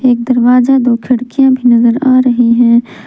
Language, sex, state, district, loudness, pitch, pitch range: Hindi, female, Jharkhand, Palamu, -9 LUFS, 245 Hz, 235-255 Hz